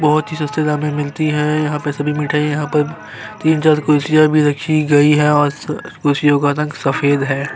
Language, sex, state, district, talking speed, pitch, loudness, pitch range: Hindi, male, Chhattisgarh, Sukma, 215 wpm, 150 Hz, -16 LUFS, 145-155 Hz